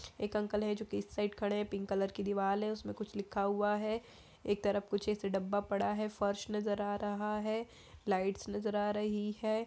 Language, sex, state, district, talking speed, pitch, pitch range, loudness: Hindi, female, Bihar, Saharsa, 225 wpm, 205 Hz, 200-210 Hz, -36 LUFS